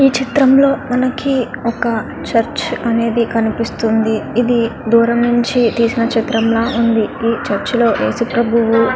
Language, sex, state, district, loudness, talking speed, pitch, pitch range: Telugu, female, Andhra Pradesh, Guntur, -15 LUFS, 45 wpm, 235 Hz, 230-245 Hz